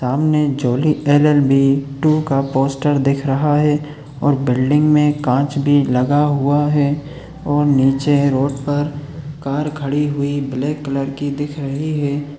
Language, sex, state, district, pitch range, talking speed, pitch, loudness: Hindi, male, Chhattisgarh, Raigarh, 135-150 Hz, 145 wpm, 145 Hz, -17 LUFS